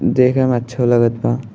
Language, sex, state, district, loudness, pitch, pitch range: Bhojpuri, male, Uttar Pradesh, Gorakhpur, -16 LUFS, 120 Hz, 120-125 Hz